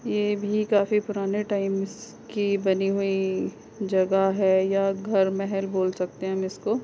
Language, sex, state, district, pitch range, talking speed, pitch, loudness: Hindi, female, Uttar Pradesh, Etah, 190-205 Hz, 160 wpm, 195 Hz, -25 LUFS